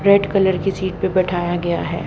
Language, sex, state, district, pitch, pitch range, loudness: Hindi, female, Haryana, Jhajjar, 190 Hz, 175-195 Hz, -19 LUFS